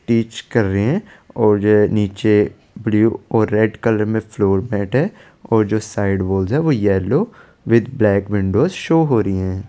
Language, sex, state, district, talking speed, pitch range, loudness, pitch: Hindi, male, Chandigarh, Chandigarh, 180 wpm, 105-120 Hz, -17 LUFS, 110 Hz